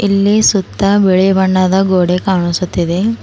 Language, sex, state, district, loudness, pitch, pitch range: Kannada, female, Karnataka, Bidar, -12 LUFS, 190 Hz, 180-200 Hz